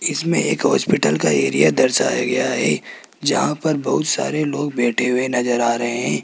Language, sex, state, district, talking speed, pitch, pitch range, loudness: Hindi, male, Rajasthan, Jaipur, 185 wpm, 125 Hz, 120-145 Hz, -18 LUFS